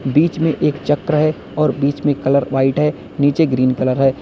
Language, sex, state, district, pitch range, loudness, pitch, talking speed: Hindi, male, Uttar Pradesh, Lalitpur, 135-150 Hz, -17 LUFS, 145 Hz, 215 wpm